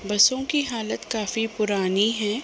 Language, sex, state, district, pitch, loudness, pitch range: Hindi, female, Uttar Pradesh, Gorakhpur, 220 Hz, -23 LUFS, 205-240 Hz